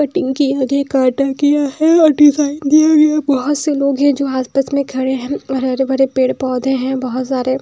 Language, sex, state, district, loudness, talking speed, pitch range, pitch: Hindi, female, Bihar, Patna, -14 LUFS, 210 wpm, 265-295 Hz, 275 Hz